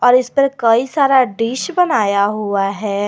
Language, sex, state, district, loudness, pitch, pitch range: Hindi, female, Jharkhand, Garhwa, -15 LUFS, 235 Hz, 205-270 Hz